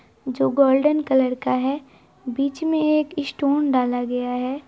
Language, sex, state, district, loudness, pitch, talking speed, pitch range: Hindi, female, Bihar, Saharsa, -21 LUFS, 270 Hz, 155 wpm, 250-295 Hz